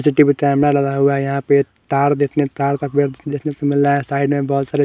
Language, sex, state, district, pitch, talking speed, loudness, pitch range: Hindi, male, Haryana, Charkhi Dadri, 140 Hz, 260 wpm, -17 LUFS, 140-145 Hz